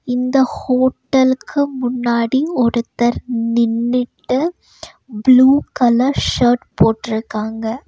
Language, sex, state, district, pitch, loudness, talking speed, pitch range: Tamil, female, Tamil Nadu, Nilgiris, 245 Hz, -16 LUFS, 70 wpm, 235-260 Hz